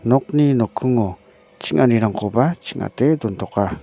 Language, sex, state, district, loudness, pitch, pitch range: Garo, male, Meghalaya, North Garo Hills, -19 LUFS, 120 Hz, 105-135 Hz